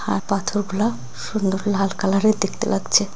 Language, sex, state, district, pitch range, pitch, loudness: Bengali, female, West Bengal, Jalpaiguri, 195-205 Hz, 195 Hz, -21 LUFS